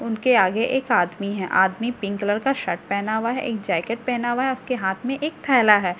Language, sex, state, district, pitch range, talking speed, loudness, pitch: Hindi, female, Delhi, New Delhi, 200-255 Hz, 240 wpm, -22 LUFS, 230 Hz